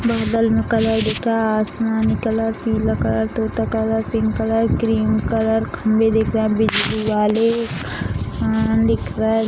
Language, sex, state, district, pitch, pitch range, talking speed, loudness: Hindi, female, Bihar, Sitamarhi, 220 Hz, 210-225 Hz, 175 wpm, -19 LUFS